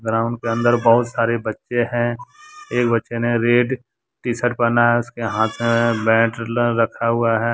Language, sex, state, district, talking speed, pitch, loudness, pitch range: Hindi, male, Jharkhand, Deoghar, 165 wpm, 115 Hz, -19 LUFS, 115-120 Hz